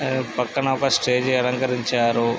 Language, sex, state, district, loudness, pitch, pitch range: Telugu, male, Andhra Pradesh, Krishna, -21 LUFS, 125 Hz, 120-130 Hz